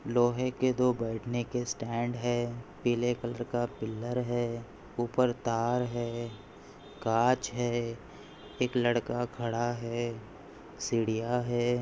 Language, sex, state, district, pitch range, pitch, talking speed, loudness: Hindi, male, Maharashtra, Chandrapur, 115-120 Hz, 120 Hz, 115 wpm, -31 LUFS